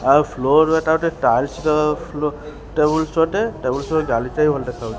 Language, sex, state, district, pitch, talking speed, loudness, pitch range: Odia, male, Odisha, Khordha, 150 Hz, 215 wpm, -19 LUFS, 140-160 Hz